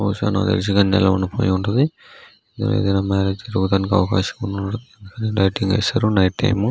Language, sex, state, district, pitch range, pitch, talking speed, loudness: Telugu, male, Andhra Pradesh, Guntur, 95-110 Hz, 100 Hz, 150 wpm, -19 LUFS